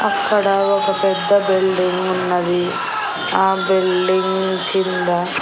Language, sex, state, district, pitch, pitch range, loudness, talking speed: Telugu, female, Andhra Pradesh, Annamaya, 190 Hz, 185-195 Hz, -17 LUFS, 90 wpm